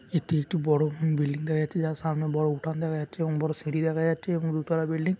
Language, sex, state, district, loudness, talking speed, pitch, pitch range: Bengali, male, West Bengal, Kolkata, -28 LUFS, 255 wpm, 160 Hz, 155-165 Hz